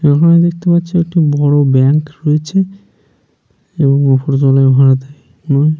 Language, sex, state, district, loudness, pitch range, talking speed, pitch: Bengali, male, West Bengal, Paschim Medinipur, -12 LUFS, 140-170 Hz, 125 wpm, 150 Hz